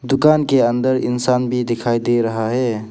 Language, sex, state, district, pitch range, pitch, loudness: Hindi, male, Arunachal Pradesh, Papum Pare, 120-130 Hz, 125 Hz, -17 LUFS